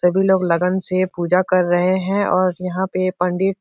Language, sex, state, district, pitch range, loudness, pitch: Hindi, male, Uttar Pradesh, Etah, 180-190 Hz, -18 LUFS, 185 Hz